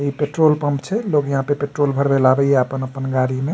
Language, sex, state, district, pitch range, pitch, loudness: Maithili, male, Bihar, Supaul, 135-145 Hz, 140 Hz, -18 LUFS